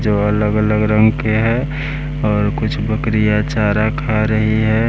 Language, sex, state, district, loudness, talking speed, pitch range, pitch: Hindi, male, Bihar, West Champaran, -16 LUFS, 145 wpm, 105-115 Hz, 110 Hz